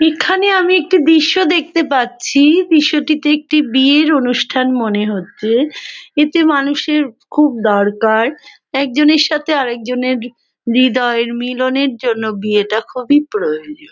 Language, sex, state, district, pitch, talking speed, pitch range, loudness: Bengali, female, West Bengal, Malda, 280 Hz, 135 wpm, 245-310 Hz, -14 LUFS